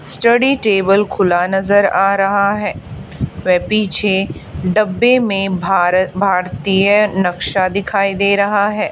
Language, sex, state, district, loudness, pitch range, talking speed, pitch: Hindi, female, Haryana, Charkhi Dadri, -14 LUFS, 190-205 Hz, 120 wpm, 195 Hz